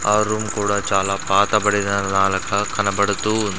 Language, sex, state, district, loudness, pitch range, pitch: Telugu, male, Andhra Pradesh, Sri Satya Sai, -19 LUFS, 100-105 Hz, 100 Hz